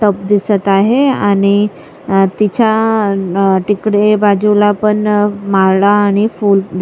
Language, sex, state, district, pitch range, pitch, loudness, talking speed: Marathi, female, Maharashtra, Sindhudurg, 195-210 Hz, 205 Hz, -12 LUFS, 115 wpm